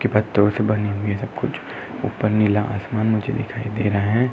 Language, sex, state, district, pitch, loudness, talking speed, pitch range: Hindi, male, Uttar Pradesh, Muzaffarnagar, 105 Hz, -21 LUFS, 125 wpm, 105-115 Hz